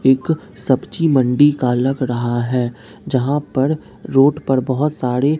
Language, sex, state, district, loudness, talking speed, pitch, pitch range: Hindi, male, Bihar, Katihar, -17 LUFS, 155 wpm, 130 Hz, 125-145 Hz